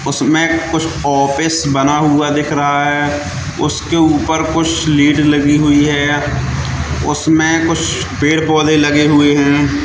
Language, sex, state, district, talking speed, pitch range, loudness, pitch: Hindi, male, Madhya Pradesh, Katni, 135 wpm, 145-160 Hz, -13 LUFS, 150 Hz